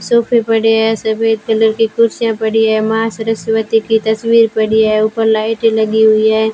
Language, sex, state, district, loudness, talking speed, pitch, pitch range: Hindi, female, Rajasthan, Bikaner, -13 LUFS, 185 wpm, 220 Hz, 220-225 Hz